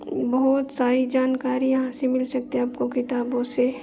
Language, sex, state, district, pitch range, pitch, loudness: Hindi, female, Jharkhand, Sahebganj, 250-260 Hz, 255 Hz, -23 LUFS